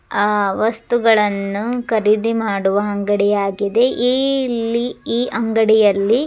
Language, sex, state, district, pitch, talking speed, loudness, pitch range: Kannada, male, Karnataka, Dharwad, 220 Hz, 85 wpm, -17 LUFS, 205-235 Hz